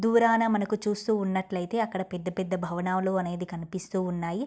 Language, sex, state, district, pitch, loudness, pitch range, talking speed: Telugu, female, Andhra Pradesh, Guntur, 190 Hz, -28 LUFS, 180-210 Hz, 135 wpm